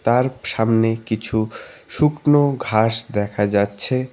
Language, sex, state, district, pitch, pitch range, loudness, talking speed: Bengali, male, West Bengal, Cooch Behar, 115 Hz, 110-130 Hz, -19 LUFS, 100 wpm